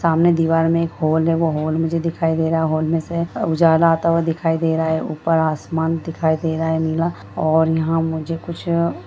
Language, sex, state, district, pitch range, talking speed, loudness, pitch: Hindi, female, Bihar, Jahanabad, 160-165 Hz, 230 wpm, -19 LUFS, 165 Hz